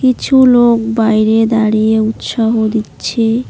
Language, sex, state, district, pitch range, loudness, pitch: Bengali, female, West Bengal, Cooch Behar, 220-240 Hz, -12 LUFS, 225 Hz